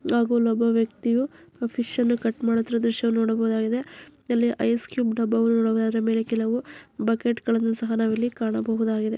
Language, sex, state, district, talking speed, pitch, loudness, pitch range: Kannada, female, Karnataka, Dharwad, 150 wpm, 230 Hz, -24 LUFS, 225-235 Hz